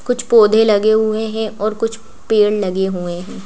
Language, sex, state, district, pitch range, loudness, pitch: Hindi, female, Madhya Pradesh, Bhopal, 205-225 Hz, -15 LUFS, 215 Hz